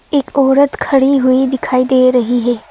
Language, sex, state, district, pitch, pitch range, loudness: Hindi, female, Assam, Kamrup Metropolitan, 260 Hz, 255-275 Hz, -12 LUFS